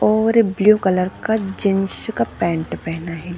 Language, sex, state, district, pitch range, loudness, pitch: Hindi, female, Chhattisgarh, Bilaspur, 175-220 Hz, -19 LUFS, 195 Hz